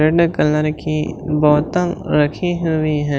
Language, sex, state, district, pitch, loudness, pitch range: Hindi, male, Chhattisgarh, Raipur, 155 Hz, -17 LUFS, 150-165 Hz